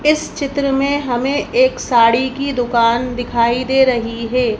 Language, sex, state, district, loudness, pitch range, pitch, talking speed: Hindi, female, Madhya Pradesh, Bhopal, -16 LUFS, 235-280 Hz, 250 Hz, 155 wpm